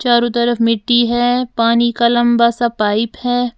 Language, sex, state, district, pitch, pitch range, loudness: Hindi, female, Uttar Pradesh, Lalitpur, 235 Hz, 235-240 Hz, -14 LUFS